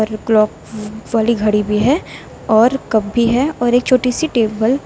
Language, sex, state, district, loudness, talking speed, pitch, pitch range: Hindi, female, Uttar Pradesh, Lucknow, -15 LUFS, 185 wpm, 225 Hz, 215-250 Hz